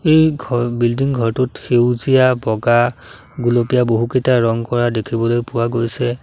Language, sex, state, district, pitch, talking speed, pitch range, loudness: Assamese, male, Assam, Sonitpur, 120 Hz, 125 wpm, 115-130 Hz, -16 LUFS